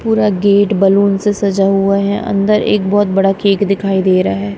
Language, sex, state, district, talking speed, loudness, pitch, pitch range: Hindi, female, Punjab, Kapurthala, 210 wpm, -13 LUFS, 200 Hz, 195-205 Hz